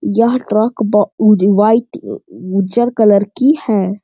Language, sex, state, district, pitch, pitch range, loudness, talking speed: Hindi, male, Bihar, Sitamarhi, 215 Hz, 200-235 Hz, -13 LUFS, 135 wpm